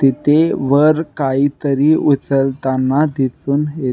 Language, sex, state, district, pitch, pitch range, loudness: Marathi, male, Maharashtra, Nagpur, 140 Hz, 135-150 Hz, -15 LUFS